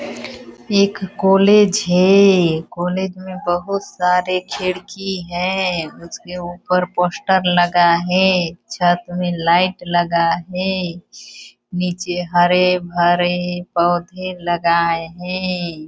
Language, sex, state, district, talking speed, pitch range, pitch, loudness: Hindi, female, Chhattisgarh, Balrampur, 90 wpm, 175-185 Hz, 180 Hz, -17 LUFS